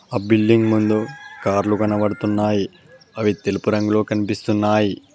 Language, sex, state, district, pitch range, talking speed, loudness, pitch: Telugu, male, Telangana, Mahabubabad, 105-110 Hz, 105 wpm, -19 LUFS, 105 Hz